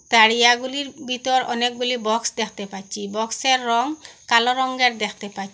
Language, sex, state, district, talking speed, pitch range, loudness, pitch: Bengali, female, Assam, Hailakandi, 130 wpm, 220-255 Hz, -20 LUFS, 240 Hz